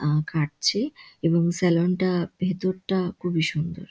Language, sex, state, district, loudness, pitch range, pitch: Bengali, female, West Bengal, Dakshin Dinajpur, -25 LUFS, 165-185 Hz, 175 Hz